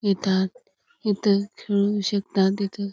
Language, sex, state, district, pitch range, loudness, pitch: Marathi, female, Karnataka, Belgaum, 195-205 Hz, -24 LUFS, 200 Hz